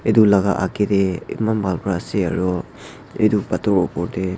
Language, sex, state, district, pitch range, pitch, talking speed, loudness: Nagamese, male, Nagaland, Dimapur, 90-105 Hz, 95 Hz, 180 wpm, -19 LUFS